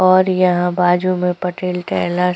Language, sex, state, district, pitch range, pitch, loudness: Hindi, female, Chhattisgarh, Korba, 180-185 Hz, 180 Hz, -16 LUFS